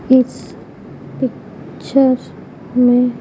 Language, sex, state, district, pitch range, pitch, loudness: Hindi, female, Chhattisgarh, Raipur, 245-260 Hz, 250 Hz, -16 LUFS